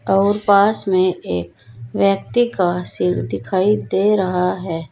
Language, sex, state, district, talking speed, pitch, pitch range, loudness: Hindi, female, Uttar Pradesh, Saharanpur, 135 wpm, 185 Hz, 155-200 Hz, -18 LUFS